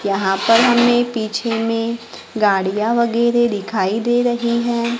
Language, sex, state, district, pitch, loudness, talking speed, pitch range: Hindi, female, Maharashtra, Gondia, 230 Hz, -17 LUFS, 130 wpm, 215-240 Hz